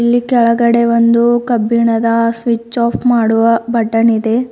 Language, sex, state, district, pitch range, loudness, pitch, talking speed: Kannada, female, Karnataka, Bidar, 230-235 Hz, -12 LUFS, 235 Hz, 120 wpm